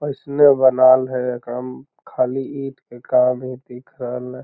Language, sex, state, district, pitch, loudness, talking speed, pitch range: Magahi, male, Bihar, Lakhisarai, 130 Hz, -18 LUFS, 160 wpm, 125-135 Hz